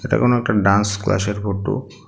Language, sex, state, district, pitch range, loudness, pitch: Bengali, male, Tripura, West Tripura, 100-120 Hz, -19 LUFS, 105 Hz